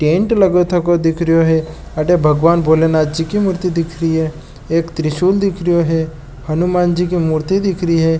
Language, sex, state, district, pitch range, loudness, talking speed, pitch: Marwari, male, Rajasthan, Nagaur, 160-180 Hz, -15 LUFS, 195 wpm, 165 Hz